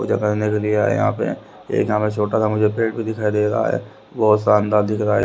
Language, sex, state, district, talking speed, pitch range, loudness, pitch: Hindi, male, Haryana, Rohtak, 275 wpm, 105-110 Hz, -19 LUFS, 105 Hz